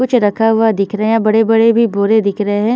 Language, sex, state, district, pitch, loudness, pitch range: Hindi, female, Bihar, Patna, 225 Hz, -13 LUFS, 205-225 Hz